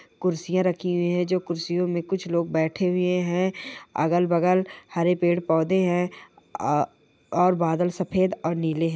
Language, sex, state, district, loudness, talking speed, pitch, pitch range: Hindi, male, Andhra Pradesh, Guntur, -24 LUFS, 165 wpm, 175 Hz, 170-185 Hz